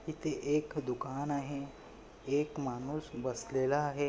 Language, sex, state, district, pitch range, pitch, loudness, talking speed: Marathi, male, Maharashtra, Nagpur, 135-150 Hz, 145 Hz, -36 LUFS, 115 wpm